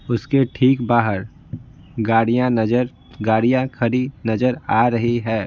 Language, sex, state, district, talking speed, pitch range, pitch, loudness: Hindi, male, Bihar, Patna, 120 wpm, 110-125 Hz, 120 Hz, -19 LUFS